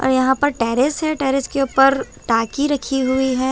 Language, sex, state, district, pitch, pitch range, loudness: Hindi, female, Bihar, Patna, 265 Hz, 260-280 Hz, -18 LUFS